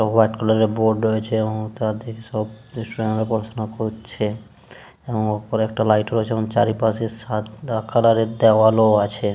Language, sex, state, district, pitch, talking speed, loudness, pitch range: Bengali, male, West Bengal, Jalpaiguri, 110 Hz, 160 wpm, -20 LUFS, 110-115 Hz